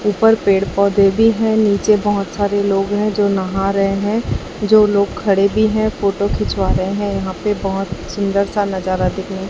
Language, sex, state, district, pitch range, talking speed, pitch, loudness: Hindi, male, Chhattisgarh, Raipur, 195-210 Hz, 190 wpm, 200 Hz, -16 LUFS